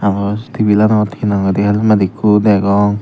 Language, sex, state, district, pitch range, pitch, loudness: Chakma, male, Tripura, Dhalai, 100-105 Hz, 105 Hz, -13 LUFS